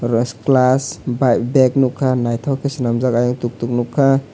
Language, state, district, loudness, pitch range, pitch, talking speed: Kokborok, Tripura, West Tripura, -17 LUFS, 120-135 Hz, 125 Hz, 150 wpm